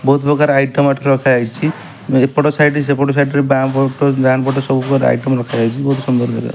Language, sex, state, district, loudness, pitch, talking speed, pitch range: Odia, male, Odisha, Malkangiri, -14 LUFS, 135 Hz, 210 wpm, 130-140 Hz